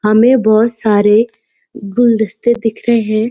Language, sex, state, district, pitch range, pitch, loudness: Hindi, female, Uttarakhand, Uttarkashi, 215-235 Hz, 225 Hz, -12 LUFS